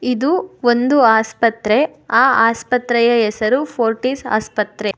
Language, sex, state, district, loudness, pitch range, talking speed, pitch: Kannada, female, Karnataka, Bangalore, -16 LUFS, 220-255 Hz, 95 wpm, 235 Hz